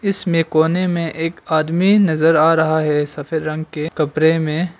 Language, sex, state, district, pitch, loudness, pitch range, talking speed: Hindi, male, Arunachal Pradesh, Longding, 160 Hz, -17 LUFS, 155-170 Hz, 175 wpm